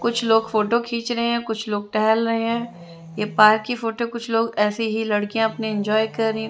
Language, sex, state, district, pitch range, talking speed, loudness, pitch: Hindi, female, Chandigarh, Chandigarh, 215-230 Hz, 220 wpm, -21 LUFS, 225 Hz